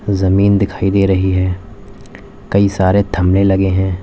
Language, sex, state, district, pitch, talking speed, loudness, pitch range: Hindi, male, Uttar Pradesh, Lalitpur, 95 Hz, 150 wpm, -14 LUFS, 95-100 Hz